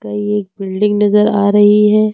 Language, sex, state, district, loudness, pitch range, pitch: Hindi, female, Uttar Pradesh, Lucknow, -12 LUFS, 205-210 Hz, 210 Hz